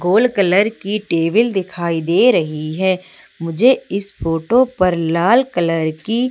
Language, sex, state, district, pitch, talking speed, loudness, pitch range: Hindi, female, Madhya Pradesh, Umaria, 185 Hz, 150 wpm, -16 LUFS, 165-225 Hz